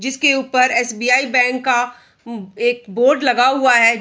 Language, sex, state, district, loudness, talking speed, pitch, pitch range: Hindi, female, Bihar, Araria, -15 LUFS, 165 wpm, 250 Hz, 235-260 Hz